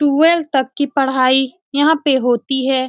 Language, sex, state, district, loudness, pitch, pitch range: Hindi, female, Bihar, Saran, -15 LUFS, 270 Hz, 260-295 Hz